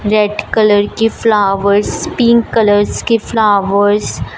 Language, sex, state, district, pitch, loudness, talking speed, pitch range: Hindi, female, Punjab, Fazilka, 210 Hz, -12 LUFS, 125 wpm, 205-225 Hz